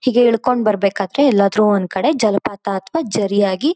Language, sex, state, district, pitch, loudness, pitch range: Kannada, female, Karnataka, Shimoga, 210 Hz, -16 LUFS, 200-255 Hz